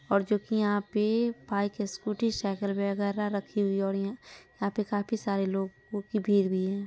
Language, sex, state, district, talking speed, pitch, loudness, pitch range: Hindi, female, Bihar, Madhepura, 200 wpm, 205 Hz, -30 LUFS, 200-210 Hz